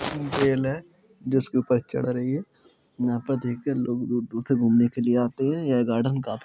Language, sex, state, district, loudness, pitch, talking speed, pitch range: Hindi, male, Uttar Pradesh, Jalaun, -25 LUFS, 130 Hz, 215 wpm, 120-135 Hz